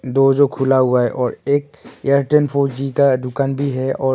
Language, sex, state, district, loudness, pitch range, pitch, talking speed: Hindi, male, Arunachal Pradesh, Longding, -17 LUFS, 130-140 Hz, 135 Hz, 215 wpm